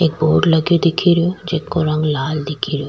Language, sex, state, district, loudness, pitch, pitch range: Rajasthani, female, Rajasthan, Churu, -16 LUFS, 160 Hz, 150-170 Hz